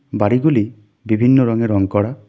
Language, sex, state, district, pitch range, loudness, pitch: Bengali, male, West Bengal, Darjeeling, 105-125 Hz, -16 LUFS, 110 Hz